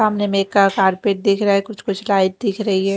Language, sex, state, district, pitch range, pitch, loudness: Hindi, female, Maharashtra, Mumbai Suburban, 195-205 Hz, 200 Hz, -18 LUFS